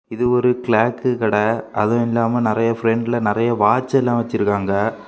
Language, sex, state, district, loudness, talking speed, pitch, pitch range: Tamil, male, Tamil Nadu, Kanyakumari, -18 LUFS, 130 wpm, 115 Hz, 110-120 Hz